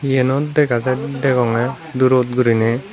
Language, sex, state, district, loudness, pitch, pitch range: Chakma, male, Tripura, Dhalai, -17 LUFS, 130 Hz, 120-135 Hz